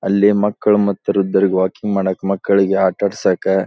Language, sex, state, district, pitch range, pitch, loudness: Kannada, male, Karnataka, Dharwad, 95-100 Hz, 100 Hz, -16 LUFS